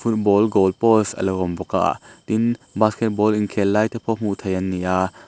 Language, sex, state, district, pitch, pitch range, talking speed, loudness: Mizo, male, Mizoram, Aizawl, 105 Hz, 95-110 Hz, 225 wpm, -20 LUFS